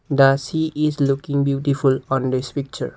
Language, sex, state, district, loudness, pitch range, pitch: English, male, Assam, Kamrup Metropolitan, -20 LUFS, 135-145 Hz, 140 Hz